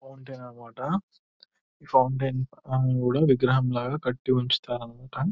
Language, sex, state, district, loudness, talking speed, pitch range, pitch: Telugu, male, Telangana, Nalgonda, -26 LUFS, 115 wpm, 125-135 Hz, 130 Hz